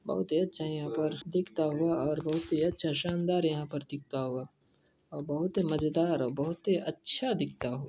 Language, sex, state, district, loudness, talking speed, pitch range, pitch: Hindi, male, Chhattisgarh, Sarguja, -31 LUFS, 200 wpm, 150-175 Hz, 155 Hz